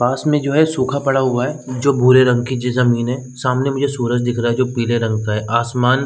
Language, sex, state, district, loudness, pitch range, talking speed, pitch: Hindi, male, Jharkhand, Sahebganj, -17 LUFS, 120-135 Hz, 285 wpm, 125 Hz